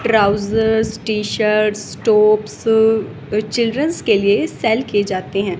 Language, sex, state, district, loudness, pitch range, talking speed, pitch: Hindi, female, Haryana, Rohtak, -17 LUFS, 205-225 Hz, 120 wpm, 215 Hz